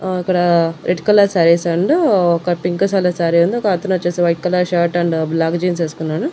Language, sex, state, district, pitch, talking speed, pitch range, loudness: Telugu, female, Andhra Pradesh, Annamaya, 175 Hz, 200 wpm, 170-180 Hz, -16 LUFS